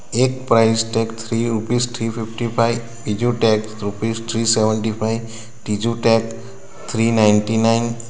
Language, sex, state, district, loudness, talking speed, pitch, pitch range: Gujarati, male, Gujarat, Valsad, -19 LUFS, 150 wpm, 115 Hz, 110-115 Hz